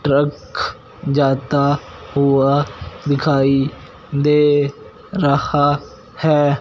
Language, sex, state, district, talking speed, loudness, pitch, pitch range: Hindi, male, Punjab, Fazilka, 65 wpm, -17 LUFS, 140 Hz, 140-145 Hz